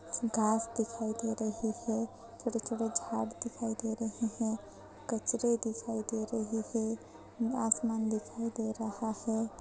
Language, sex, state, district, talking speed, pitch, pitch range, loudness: Hindi, female, Uttar Pradesh, Jyotiba Phule Nagar, 130 wpm, 225 Hz, 220-230 Hz, -34 LUFS